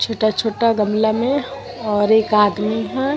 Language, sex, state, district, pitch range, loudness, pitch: Hindi, female, Bihar, Vaishali, 210-235 Hz, -18 LUFS, 220 Hz